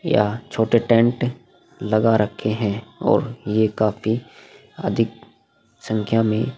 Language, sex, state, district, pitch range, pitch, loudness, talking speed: Hindi, male, Goa, North and South Goa, 105-115 Hz, 110 Hz, -21 LUFS, 120 wpm